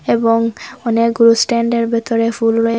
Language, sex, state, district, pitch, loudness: Bengali, female, Assam, Hailakandi, 230 Hz, -15 LUFS